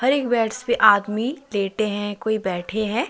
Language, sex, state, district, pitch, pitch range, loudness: Hindi, male, Jharkhand, Deoghar, 220 Hz, 205-240 Hz, -21 LUFS